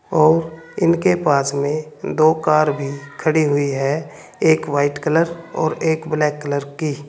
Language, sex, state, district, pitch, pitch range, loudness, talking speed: Hindi, male, Uttar Pradesh, Saharanpur, 155 Hz, 145-160 Hz, -19 LUFS, 145 wpm